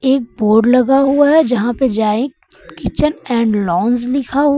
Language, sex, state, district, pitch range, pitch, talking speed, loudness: Hindi, female, Uttar Pradesh, Lucknow, 230-275 Hz, 255 Hz, 185 wpm, -14 LUFS